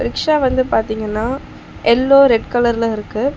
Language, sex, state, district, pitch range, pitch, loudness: Tamil, female, Tamil Nadu, Chennai, 220-270 Hz, 240 Hz, -15 LUFS